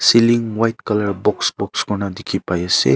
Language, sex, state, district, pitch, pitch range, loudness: Nagamese, male, Nagaland, Kohima, 100 Hz, 95-115 Hz, -18 LUFS